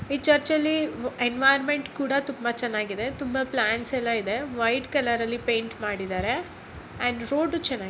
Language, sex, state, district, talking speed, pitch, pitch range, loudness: Kannada, female, Karnataka, Gulbarga, 145 wpm, 255 Hz, 230-280 Hz, -25 LUFS